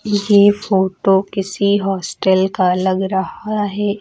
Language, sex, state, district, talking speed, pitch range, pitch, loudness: Hindi, female, Uttar Pradesh, Lucknow, 120 wpm, 190-205 Hz, 195 Hz, -16 LUFS